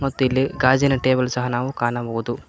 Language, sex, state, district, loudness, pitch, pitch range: Kannada, male, Karnataka, Koppal, -20 LUFS, 130 Hz, 120-135 Hz